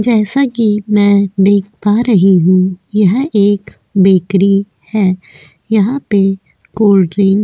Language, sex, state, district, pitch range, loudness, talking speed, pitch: Hindi, female, Goa, North and South Goa, 190-210 Hz, -12 LUFS, 120 wpm, 200 Hz